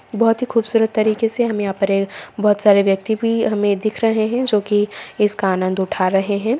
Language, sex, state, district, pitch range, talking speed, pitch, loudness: Hindi, female, Bihar, Gaya, 200-225 Hz, 220 wpm, 210 Hz, -18 LUFS